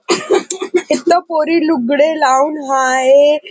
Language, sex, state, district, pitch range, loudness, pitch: Marathi, female, Maharashtra, Chandrapur, 280-350 Hz, -13 LUFS, 305 Hz